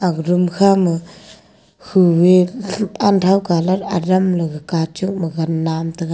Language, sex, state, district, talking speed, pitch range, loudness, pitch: Wancho, female, Arunachal Pradesh, Longding, 135 wpm, 170-195 Hz, -16 LUFS, 180 Hz